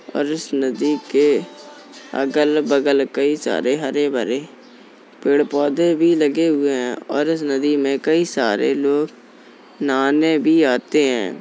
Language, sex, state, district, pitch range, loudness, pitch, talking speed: Hindi, male, Uttar Pradesh, Jalaun, 135-155 Hz, -18 LUFS, 145 Hz, 125 wpm